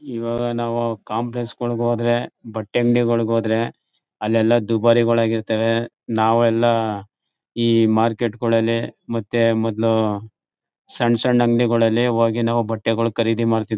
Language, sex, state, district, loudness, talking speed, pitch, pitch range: Kannada, male, Karnataka, Mysore, -19 LUFS, 100 wpm, 115 Hz, 115-120 Hz